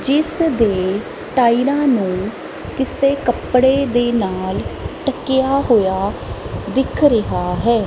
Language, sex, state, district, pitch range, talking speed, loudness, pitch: Punjabi, female, Punjab, Kapurthala, 200-270 Hz, 100 wpm, -17 LUFS, 240 Hz